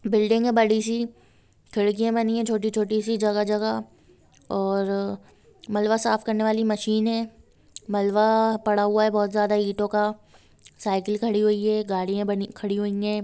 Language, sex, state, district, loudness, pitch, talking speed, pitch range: Hindi, female, Bihar, Sitamarhi, -24 LUFS, 215 Hz, 155 wpm, 205-220 Hz